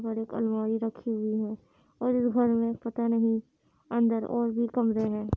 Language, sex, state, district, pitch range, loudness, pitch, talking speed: Hindi, female, Uttar Pradesh, Muzaffarnagar, 220-235 Hz, -28 LUFS, 230 Hz, 170 wpm